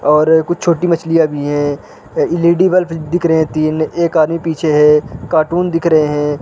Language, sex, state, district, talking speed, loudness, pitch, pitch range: Hindi, male, Uttarakhand, Uttarkashi, 195 wpm, -13 LUFS, 160 Hz, 150-170 Hz